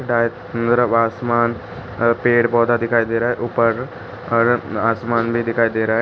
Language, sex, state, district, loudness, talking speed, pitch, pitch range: Hindi, male, Uttar Pradesh, Hamirpur, -18 LUFS, 150 wpm, 115 Hz, 115-120 Hz